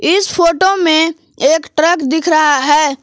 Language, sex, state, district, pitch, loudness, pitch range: Hindi, female, Jharkhand, Palamu, 320 Hz, -12 LUFS, 300-340 Hz